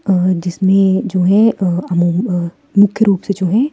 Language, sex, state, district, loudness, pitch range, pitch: Hindi, female, Himachal Pradesh, Shimla, -14 LUFS, 180-205 Hz, 190 Hz